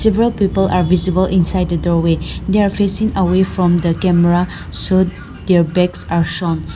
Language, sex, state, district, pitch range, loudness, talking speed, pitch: English, female, Nagaland, Dimapur, 175-190 Hz, -15 LUFS, 170 wpm, 180 Hz